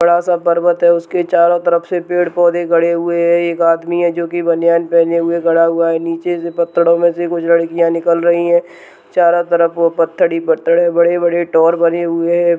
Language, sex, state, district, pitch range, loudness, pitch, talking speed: Hindi, male, Uttar Pradesh, Budaun, 170-175 Hz, -13 LUFS, 170 Hz, 210 wpm